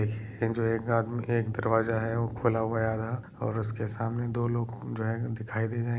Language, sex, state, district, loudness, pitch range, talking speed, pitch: Hindi, male, Chhattisgarh, Raigarh, -30 LUFS, 110-115 Hz, 230 wpm, 115 Hz